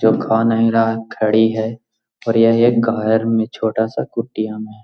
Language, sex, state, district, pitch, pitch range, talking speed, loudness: Magahi, male, Bihar, Jahanabad, 110 Hz, 110-115 Hz, 200 wpm, -17 LUFS